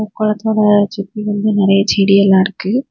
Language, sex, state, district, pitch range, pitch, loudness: Tamil, female, Tamil Nadu, Kanyakumari, 195-215 Hz, 205 Hz, -13 LUFS